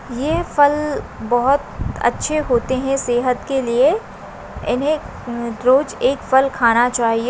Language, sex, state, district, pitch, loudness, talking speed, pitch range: Hindi, female, Maharashtra, Aurangabad, 260 Hz, -18 LUFS, 125 wpm, 240-285 Hz